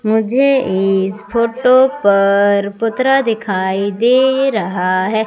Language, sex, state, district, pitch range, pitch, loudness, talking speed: Hindi, female, Madhya Pradesh, Umaria, 195-255 Hz, 220 Hz, -14 LUFS, 100 wpm